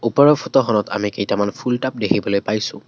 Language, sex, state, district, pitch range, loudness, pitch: Assamese, male, Assam, Kamrup Metropolitan, 100-130 Hz, -18 LUFS, 110 Hz